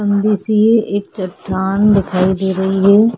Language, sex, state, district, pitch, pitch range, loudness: Hindi, female, Goa, North and South Goa, 200 Hz, 190-210 Hz, -14 LUFS